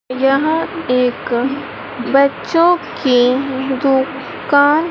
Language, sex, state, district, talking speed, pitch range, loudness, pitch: Hindi, female, Madhya Pradesh, Dhar, 60 wpm, 255-295 Hz, -15 LUFS, 275 Hz